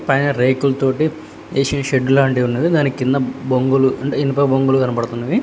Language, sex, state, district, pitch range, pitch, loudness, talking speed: Telugu, male, Telangana, Hyderabad, 130-140 Hz, 135 Hz, -17 LUFS, 155 wpm